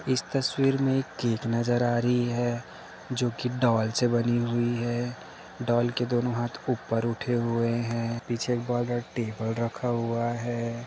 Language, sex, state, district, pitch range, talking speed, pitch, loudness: Hindi, male, Uttar Pradesh, Budaun, 115-125 Hz, 170 wpm, 120 Hz, -28 LUFS